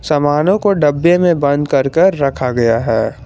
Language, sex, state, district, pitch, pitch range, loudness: Hindi, male, Jharkhand, Garhwa, 145 Hz, 130-170 Hz, -13 LUFS